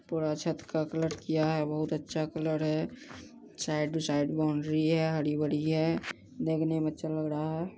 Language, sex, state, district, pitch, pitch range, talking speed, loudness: Hindi, male, Bihar, Madhepura, 155 Hz, 155-160 Hz, 185 wpm, -31 LUFS